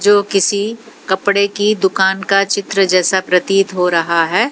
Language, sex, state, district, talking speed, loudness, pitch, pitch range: Hindi, female, Haryana, Jhajjar, 160 wpm, -14 LUFS, 195 Hz, 185-205 Hz